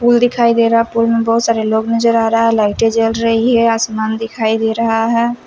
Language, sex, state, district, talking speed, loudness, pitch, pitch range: Hindi, male, Punjab, Fazilka, 250 wpm, -14 LUFS, 230 Hz, 225-230 Hz